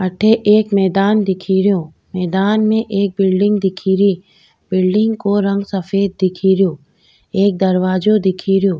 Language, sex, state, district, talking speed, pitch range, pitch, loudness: Rajasthani, female, Rajasthan, Nagaur, 125 wpm, 185-200 Hz, 195 Hz, -15 LUFS